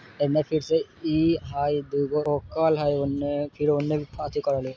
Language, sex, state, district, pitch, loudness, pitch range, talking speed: Hindi, male, Bihar, Muzaffarpur, 145 Hz, -25 LUFS, 140-155 Hz, 175 wpm